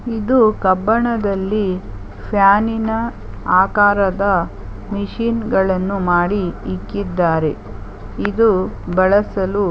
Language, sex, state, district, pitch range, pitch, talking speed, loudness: Kannada, female, Karnataka, Belgaum, 180-215 Hz, 195 Hz, 75 wpm, -17 LUFS